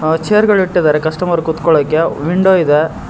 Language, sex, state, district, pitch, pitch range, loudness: Kannada, male, Karnataka, Koppal, 165 Hz, 155-180 Hz, -13 LUFS